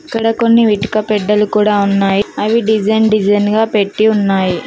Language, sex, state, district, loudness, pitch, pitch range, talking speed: Telugu, female, Telangana, Mahabubabad, -13 LUFS, 210 Hz, 205-220 Hz, 155 wpm